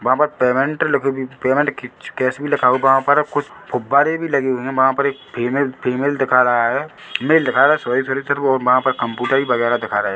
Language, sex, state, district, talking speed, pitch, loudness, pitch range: Hindi, male, Chhattisgarh, Bilaspur, 260 wpm, 130 Hz, -17 LUFS, 125-140 Hz